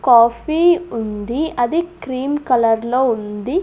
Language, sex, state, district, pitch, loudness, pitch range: Telugu, female, Andhra Pradesh, Sri Satya Sai, 250 Hz, -17 LUFS, 230-310 Hz